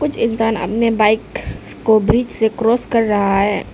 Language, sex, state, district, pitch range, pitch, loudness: Hindi, female, Arunachal Pradesh, Lower Dibang Valley, 215-230 Hz, 225 Hz, -16 LUFS